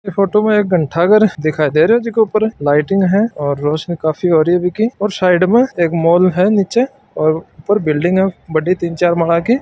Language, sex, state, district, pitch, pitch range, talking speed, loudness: Marwari, male, Rajasthan, Nagaur, 180 Hz, 160-210 Hz, 220 wpm, -14 LUFS